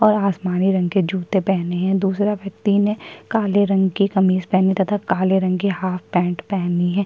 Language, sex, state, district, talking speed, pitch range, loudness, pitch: Hindi, female, Chhattisgarh, Kabirdham, 195 wpm, 185-200 Hz, -19 LUFS, 190 Hz